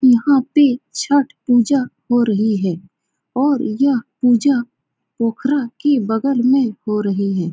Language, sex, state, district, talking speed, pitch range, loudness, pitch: Hindi, female, Bihar, Saran, 135 wpm, 220-275 Hz, -17 LUFS, 245 Hz